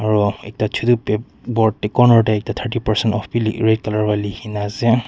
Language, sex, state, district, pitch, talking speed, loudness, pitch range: Nagamese, male, Nagaland, Dimapur, 110 Hz, 225 wpm, -18 LUFS, 105-115 Hz